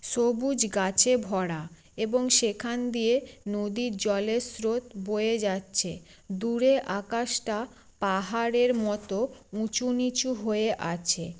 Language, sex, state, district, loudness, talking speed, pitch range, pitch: Bengali, female, West Bengal, Jalpaiguri, -27 LUFS, 100 wpm, 200-245 Hz, 225 Hz